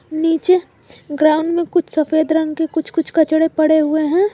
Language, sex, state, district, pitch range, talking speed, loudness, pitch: Hindi, female, Jharkhand, Garhwa, 310-330 Hz, 180 wpm, -16 LUFS, 320 Hz